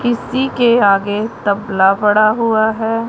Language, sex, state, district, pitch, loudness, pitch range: Hindi, male, Punjab, Pathankot, 220 Hz, -14 LUFS, 205-230 Hz